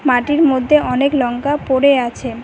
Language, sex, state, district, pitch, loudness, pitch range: Bengali, female, West Bengal, Cooch Behar, 270 Hz, -15 LUFS, 250-290 Hz